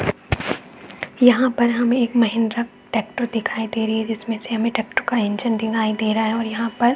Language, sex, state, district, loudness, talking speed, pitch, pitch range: Hindi, male, Chhattisgarh, Balrampur, -21 LUFS, 190 wpm, 230 Hz, 220-240 Hz